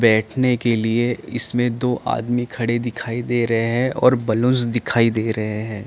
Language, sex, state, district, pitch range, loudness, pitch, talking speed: Hindi, male, Chandigarh, Chandigarh, 115-120 Hz, -20 LUFS, 120 Hz, 185 wpm